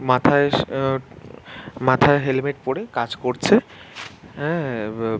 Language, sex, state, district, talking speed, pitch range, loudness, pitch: Bengali, male, West Bengal, Kolkata, 105 wpm, 125-145 Hz, -21 LUFS, 135 Hz